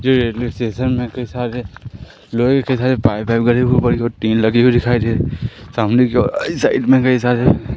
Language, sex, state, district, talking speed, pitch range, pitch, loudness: Hindi, male, Madhya Pradesh, Katni, 195 wpm, 115-125 Hz, 120 Hz, -16 LUFS